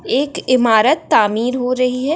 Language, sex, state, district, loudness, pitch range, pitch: Hindi, female, Maharashtra, Chandrapur, -15 LUFS, 245-290 Hz, 255 Hz